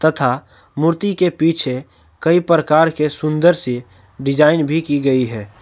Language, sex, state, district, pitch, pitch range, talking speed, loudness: Hindi, male, Jharkhand, Palamu, 150 Hz, 125-165 Hz, 140 wpm, -16 LUFS